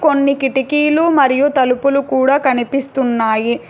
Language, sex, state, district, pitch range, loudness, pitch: Telugu, female, Telangana, Hyderabad, 260-280 Hz, -14 LUFS, 270 Hz